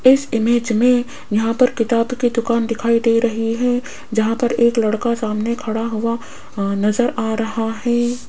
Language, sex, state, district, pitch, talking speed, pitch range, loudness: Hindi, female, Rajasthan, Jaipur, 230 Hz, 165 wpm, 225-240 Hz, -18 LUFS